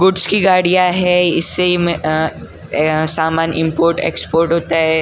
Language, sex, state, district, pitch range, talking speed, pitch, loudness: Hindi, male, Maharashtra, Gondia, 160-180 Hz, 145 wpm, 165 Hz, -14 LUFS